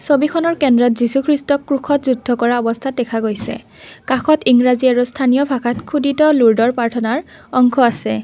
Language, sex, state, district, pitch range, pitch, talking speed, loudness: Assamese, female, Assam, Kamrup Metropolitan, 240-285 Hz, 255 Hz, 140 wpm, -15 LUFS